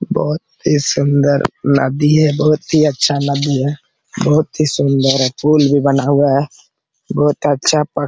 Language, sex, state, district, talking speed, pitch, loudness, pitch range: Hindi, male, Jharkhand, Sahebganj, 165 wpm, 145 Hz, -14 LUFS, 140-150 Hz